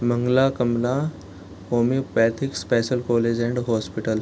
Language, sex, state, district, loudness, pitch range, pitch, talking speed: Hindi, male, Bihar, Gopalganj, -22 LUFS, 110-125 Hz, 120 Hz, 115 wpm